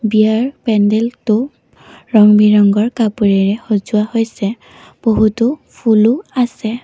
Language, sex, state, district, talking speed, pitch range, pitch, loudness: Assamese, female, Assam, Kamrup Metropolitan, 90 wpm, 210-235 Hz, 220 Hz, -14 LUFS